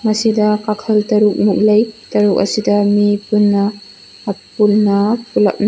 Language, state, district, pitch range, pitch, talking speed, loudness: Manipuri, Manipur, Imphal West, 205-215 Hz, 210 Hz, 125 wpm, -14 LUFS